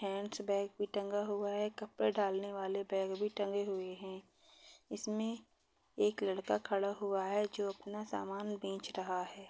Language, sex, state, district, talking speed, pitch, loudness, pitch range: Hindi, female, Maharashtra, Pune, 165 wpm, 200 Hz, -38 LUFS, 195-210 Hz